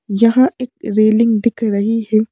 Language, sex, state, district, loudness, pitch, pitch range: Hindi, female, Madhya Pradesh, Bhopal, -15 LUFS, 225 Hz, 215-235 Hz